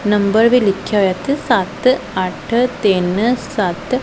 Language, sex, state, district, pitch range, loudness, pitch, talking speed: Punjabi, female, Punjab, Pathankot, 190-250 Hz, -16 LUFS, 215 Hz, 135 wpm